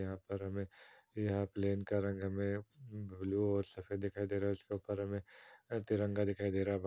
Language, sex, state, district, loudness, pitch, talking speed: Hindi, male, Uttar Pradesh, Jyotiba Phule Nagar, -39 LUFS, 100 Hz, 200 wpm